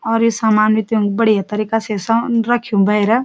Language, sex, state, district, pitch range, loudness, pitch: Garhwali, female, Uttarakhand, Uttarkashi, 215-230 Hz, -16 LUFS, 220 Hz